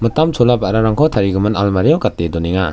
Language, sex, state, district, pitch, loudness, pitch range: Garo, male, Meghalaya, West Garo Hills, 105 Hz, -15 LUFS, 95-120 Hz